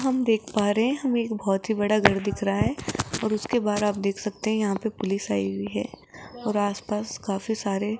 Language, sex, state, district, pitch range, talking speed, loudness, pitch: Hindi, female, Rajasthan, Jaipur, 200-220 Hz, 245 wpm, -26 LUFS, 210 Hz